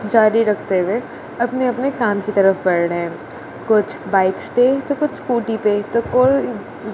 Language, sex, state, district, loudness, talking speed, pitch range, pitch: Hindi, female, Gujarat, Gandhinagar, -18 LUFS, 165 wpm, 195-250 Hz, 215 Hz